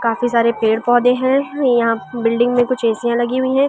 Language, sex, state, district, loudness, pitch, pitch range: Hindi, female, Delhi, New Delhi, -16 LUFS, 240 Hz, 230-255 Hz